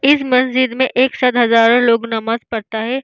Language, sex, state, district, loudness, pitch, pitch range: Hindi, female, Bihar, Vaishali, -14 LUFS, 245 Hz, 230-260 Hz